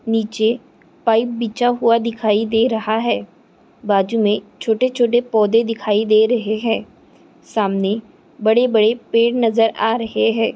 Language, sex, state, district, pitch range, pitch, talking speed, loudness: Hindi, female, Andhra Pradesh, Chittoor, 215-235 Hz, 225 Hz, 130 wpm, -18 LUFS